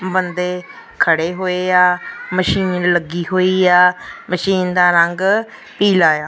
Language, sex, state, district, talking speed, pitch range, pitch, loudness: Punjabi, female, Punjab, Fazilka, 125 wpm, 180-185 Hz, 180 Hz, -15 LUFS